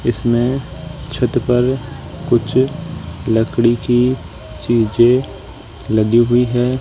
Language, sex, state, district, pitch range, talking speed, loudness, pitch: Hindi, male, Rajasthan, Jaipur, 110-125 Hz, 90 wpm, -16 LUFS, 120 Hz